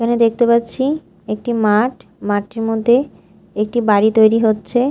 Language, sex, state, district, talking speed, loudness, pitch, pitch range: Bengali, female, Odisha, Malkangiri, 135 wpm, -16 LUFS, 225 Hz, 210-240 Hz